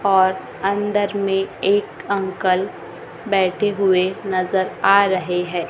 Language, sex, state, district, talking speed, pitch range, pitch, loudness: Hindi, female, Maharashtra, Gondia, 115 wpm, 185-200 Hz, 195 Hz, -19 LUFS